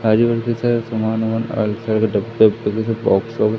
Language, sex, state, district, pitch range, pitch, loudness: Hindi, male, Madhya Pradesh, Katni, 110-115 Hz, 110 Hz, -18 LUFS